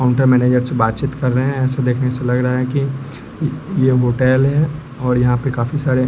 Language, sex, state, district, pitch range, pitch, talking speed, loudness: Hindi, male, Bihar, West Champaran, 125-135 Hz, 130 Hz, 245 wpm, -17 LUFS